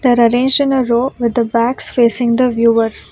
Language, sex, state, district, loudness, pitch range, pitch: English, female, Karnataka, Bangalore, -14 LUFS, 235-255 Hz, 240 Hz